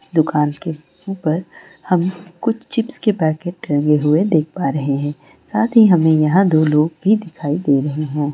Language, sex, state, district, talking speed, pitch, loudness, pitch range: Hindi, female, West Bengal, Dakshin Dinajpur, 180 wpm, 160 Hz, -17 LUFS, 150-185 Hz